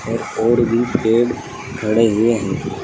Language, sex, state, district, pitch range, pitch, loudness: Hindi, male, Uttar Pradesh, Saharanpur, 110-120 Hz, 115 Hz, -17 LUFS